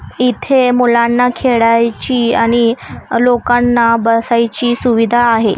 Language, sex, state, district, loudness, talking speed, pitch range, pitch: Marathi, female, Maharashtra, Aurangabad, -12 LUFS, 85 wpm, 230-245 Hz, 240 Hz